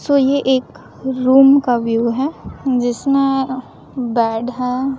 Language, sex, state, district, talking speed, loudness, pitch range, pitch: Hindi, female, Chhattisgarh, Raipur, 120 wpm, -16 LUFS, 245-270 Hz, 260 Hz